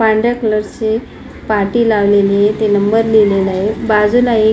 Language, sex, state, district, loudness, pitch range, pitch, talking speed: Marathi, female, Maharashtra, Pune, -13 LUFS, 205-225 Hz, 215 Hz, 170 wpm